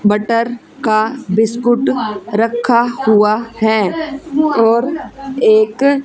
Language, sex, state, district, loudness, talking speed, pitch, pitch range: Hindi, female, Haryana, Charkhi Dadri, -14 LUFS, 80 wpm, 230 Hz, 215-270 Hz